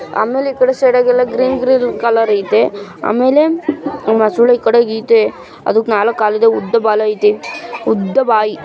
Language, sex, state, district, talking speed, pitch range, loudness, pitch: Kannada, female, Karnataka, Mysore, 155 wpm, 215-255 Hz, -13 LUFS, 235 Hz